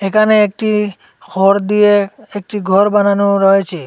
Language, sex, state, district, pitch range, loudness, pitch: Bengali, male, Assam, Hailakandi, 195-210 Hz, -13 LUFS, 200 Hz